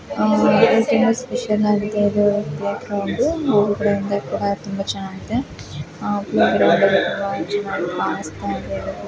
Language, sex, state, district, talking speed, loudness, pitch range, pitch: Kannada, female, Karnataka, Gulbarga, 75 wpm, -19 LUFS, 200-210 Hz, 205 Hz